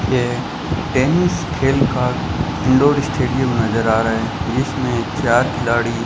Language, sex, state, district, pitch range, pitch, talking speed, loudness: Hindi, male, Rajasthan, Bikaner, 115-130 Hz, 120 Hz, 140 wpm, -18 LUFS